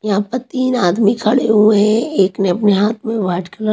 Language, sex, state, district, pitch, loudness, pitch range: Hindi, female, Maharashtra, Mumbai Suburban, 215 Hz, -15 LUFS, 200-230 Hz